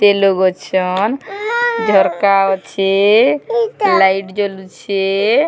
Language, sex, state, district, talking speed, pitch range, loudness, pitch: Odia, female, Odisha, Sambalpur, 75 wpm, 190-275 Hz, -14 LUFS, 200 Hz